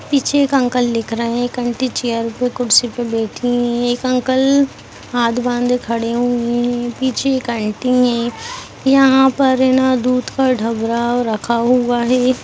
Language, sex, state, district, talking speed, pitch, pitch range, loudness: Hindi, female, Chhattisgarh, Raigarh, 165 wpm, 245 Hz, 235-260 Hz, -16 LUFS